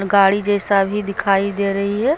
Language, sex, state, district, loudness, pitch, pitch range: Hindi, female, Jharkhand, Deoghar, -18 LUFS, 200 Hz, 195-205 Hz